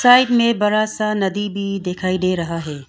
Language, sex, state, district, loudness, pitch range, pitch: Hindi, female, Arunachal Pradesh, Longding, -18 LUFS, 185-215 Hz, 200 Hz